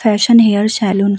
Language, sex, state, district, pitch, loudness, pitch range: Hindi, female, Uttar Pradesh, Budaun, 210 Hz, -11 LUFS, 200-220 Hz